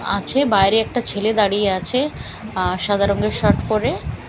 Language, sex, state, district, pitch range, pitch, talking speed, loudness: Bengali, female, Bihar, Katihar, 195-225 Hz, 205 Hz, 155 wpm, -18 LUFS